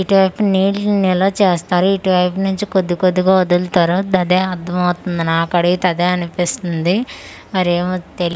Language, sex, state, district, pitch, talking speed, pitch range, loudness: Telugu, female, Andhra Pradesh, Manyam, 180 Hz, 100 wpm, 175-190 Hz, -16 LUFS